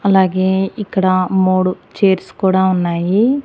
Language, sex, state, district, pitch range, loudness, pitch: Telugu, female, Andhra Pradesh, Annamaya, 185-195 Hz, -15 LUFS, 190 Hz